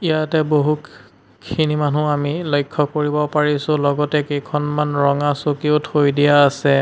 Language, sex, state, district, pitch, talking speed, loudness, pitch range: Assamese, male, Assam, Sonitpur, 150 Hz, 140 wpm, -18 LUFS, 145-150 Hz